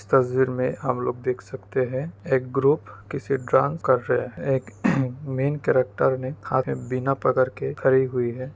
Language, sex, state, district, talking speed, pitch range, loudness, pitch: Hindi, male, Uttar Pradesh, Deoria, 155 wpm, 125-135 Hz, -24 LUFS, 130 Hz